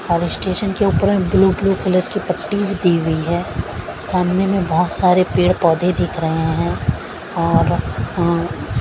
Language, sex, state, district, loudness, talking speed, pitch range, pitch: Hindi, female, Maharashtra, Mumbai Suburban, -18 LUFS, 175 wpm, 170-190 Hz, 180 Hz